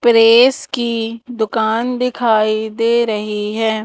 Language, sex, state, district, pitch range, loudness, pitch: Hindi, female, Madhya Pradesh, Umaria, 220-240 Hz, -15 LUFS, 230 Hz